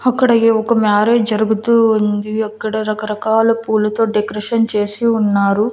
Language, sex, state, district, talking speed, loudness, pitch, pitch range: Telugu, female, Andhra Pradesh, Annamaya, 125 wpm, -15 LUFS, 220 Hz, 210-230 Hz